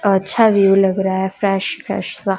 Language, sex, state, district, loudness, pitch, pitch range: Hindi, female, Punjab, Kapurthala, -16 LUFS, 195 Hz, 190-200 Hz